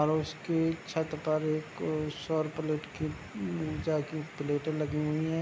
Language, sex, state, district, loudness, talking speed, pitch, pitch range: Hindi, male, Bihar, Begusarai, -33 LUFS, 135 wpm, 155 Hz, 150-160 Hz